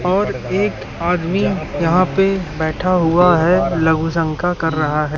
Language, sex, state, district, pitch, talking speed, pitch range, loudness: Hindi, male, Madhya Pradesh, Katni, 175 Hz, 150 wpm, 160-185 Hz, -17 LUFS